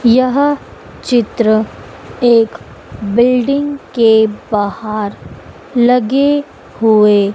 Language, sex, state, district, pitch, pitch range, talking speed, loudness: Hindi, female, Madhya Pradesh, Dhar, 235 Hz, 215-255 Hz, 65 wpm, -13 LUFS